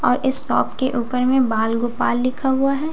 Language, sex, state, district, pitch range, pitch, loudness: Hindi, female, Bihar, Katihar, 240-265 Hz, 255 Hz, -17 LUFS